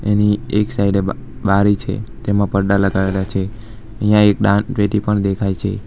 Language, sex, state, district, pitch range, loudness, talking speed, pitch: Gujarati, male, Gujarat, Valsad, 100-105 Hz, -17 LUFS, 175 wpm, 100 Hz